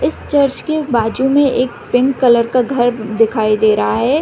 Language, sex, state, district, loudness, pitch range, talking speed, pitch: Hindi, female, Chhattisgarh, Raigarh, -14 LUFS, 225-270 Hz, 185 wpm, 245 Hz